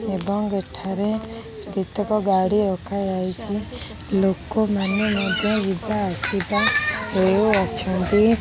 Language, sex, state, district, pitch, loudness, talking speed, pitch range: Odia, female, Odisha, Khordha, 200 Hz, -21 LUFS, 85 wpm, 190-210 Hz